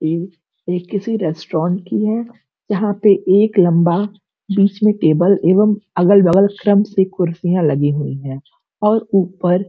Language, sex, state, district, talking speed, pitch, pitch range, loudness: Hindi, female, Uttar Pradesh, Gorakhpur, 155 wpm, 190 Hz, 170-205 Hz, -16 LUFS